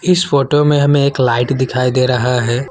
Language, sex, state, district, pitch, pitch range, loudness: Hindi, male, Assam, Kamrup Metropolitan, 130 Hz, 125-145 Hz, -14 LUFS